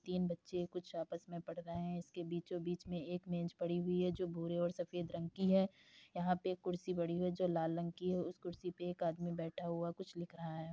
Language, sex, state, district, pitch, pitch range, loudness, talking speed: Hindi, female, Uttar Pradesh, Hamirpur, 175 Hz, 170-180 Hz, -41 LUFS, 250 wpm